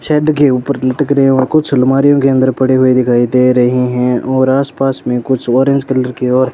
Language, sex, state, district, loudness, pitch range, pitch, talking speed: Hindi, male, Rajasthan, Bikaner, -12 LUFS, 125-135 Hz, 130 Hz, 240 wpm